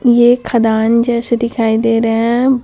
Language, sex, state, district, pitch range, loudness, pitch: Hindi, female, Chhattisgarh, Raipur, 225-240 Hz, -13 LUFS, 235 Hz